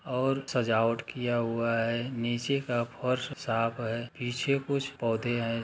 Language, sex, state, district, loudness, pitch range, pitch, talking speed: Hindi, male, Bihar, Jahanabad, -30 LUFS, 115-130 Hz, 120 Hz, 150 wpm